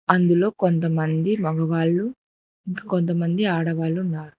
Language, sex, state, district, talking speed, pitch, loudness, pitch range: Telugu, female, Telangana, Hyderabad, 80 wpm, 175 Hz, -22 LUFS, 165-190 Hz